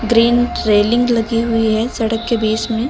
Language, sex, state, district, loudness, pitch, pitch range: Hindi, female, Uttar Pradesh, Lucknow, -15 LUFS, 230 Hz, 225-235 Hz